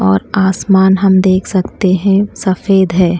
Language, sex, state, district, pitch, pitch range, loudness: Hindi, female, Maharashtra, Mumbai Suburban, 190 Hz, 185-195 Hz, -12 LUFS